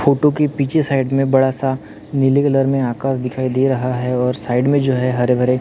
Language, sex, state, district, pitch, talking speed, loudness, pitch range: Hindi, male, Maharashtra, Gondia, 135 Hz, 235 wpm, -17 LUFS, 125-135 Hz